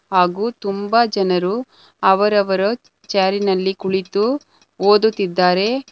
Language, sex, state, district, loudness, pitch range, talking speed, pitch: Kannada, female, Karnataka, Bangalore, -18 LUFS, 190-215 Hz, 70 wpm, 200 Hz